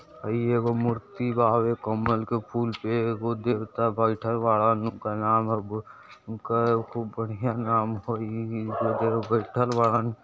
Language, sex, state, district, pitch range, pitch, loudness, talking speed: Bhojpuri, male, Uttar Pradesh, Gorakhpur, 110-115 Hz, 115 Hz, -26 LUFS, 160 wpm